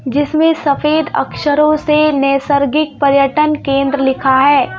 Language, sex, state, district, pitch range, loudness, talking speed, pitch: Hindi, female, Madhya Pradesh, Bhopal, 275-300 Hz, -13 LUFS, 115 wpm, 290 Hz